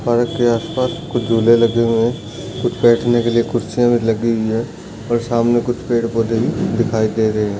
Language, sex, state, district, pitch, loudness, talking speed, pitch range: Hindi, male, Maharashtra, Chandrapur, 115 Hz, -17 LUFS, 205 wpm, 115-120 Hz